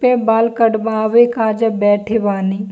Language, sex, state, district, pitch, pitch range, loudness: Hindi, female, Bihar, Kishanganj, 220 Hz, 205-230 Hz, -15 LUFS